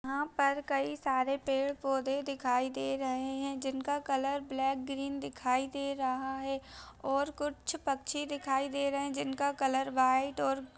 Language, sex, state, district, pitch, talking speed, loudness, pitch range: Hindi, female, Chhattisgarh, Bilaspur, 275 Hz, 160 wpm, -33 LUFS, 265-280 Hz